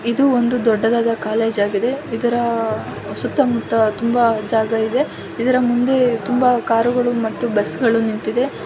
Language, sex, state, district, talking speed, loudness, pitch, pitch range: Kannada, female, Karnataka, Raichur, 120 wpm, -18 LUFS, 235 Hz, 225-245 Hz